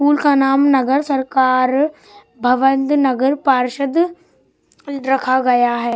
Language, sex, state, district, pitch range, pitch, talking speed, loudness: Hindi, male, Bihar, West Champaran, 255-285 Hz, 270 Hz, 110 wpm, -16 LUFS